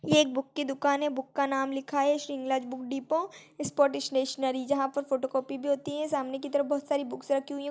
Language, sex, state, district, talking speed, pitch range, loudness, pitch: Hindi, female, Chhattisgarh, Kabirdham, 255 wpm, 270-285 Hz, -30 LUFS, 280 Hz